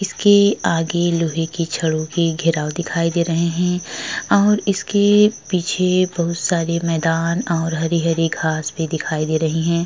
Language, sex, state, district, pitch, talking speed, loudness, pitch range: Hindi, female, Uttar Pradesh, Jalaun, 170 Hz, 150 wpm, -18 LUFS, 165-180 Hz